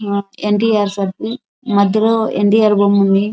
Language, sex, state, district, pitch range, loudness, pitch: Telugu, female, Andhra Pradesh, Anantapur, 200-220 Hz, -15 LUFS, 205 Hz